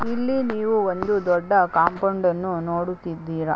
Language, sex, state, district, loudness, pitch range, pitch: Kannada, female, Karnataka, Chamarajanagar, -22 LUFS, 170-205 Hz, 180 Hz